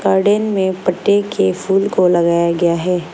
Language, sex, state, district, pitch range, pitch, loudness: Hindi, female, Arunachal Pradesh, Lower Dibang Valley, 170-200 Hz, 185 Hz, -15 LUFS